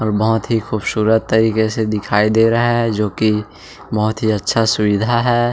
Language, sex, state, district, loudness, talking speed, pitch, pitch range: Hindi, male, Chhattisgarh, Jashpur, -16 LUFS, 185 wpm, 110 Hz, 105-115 Hz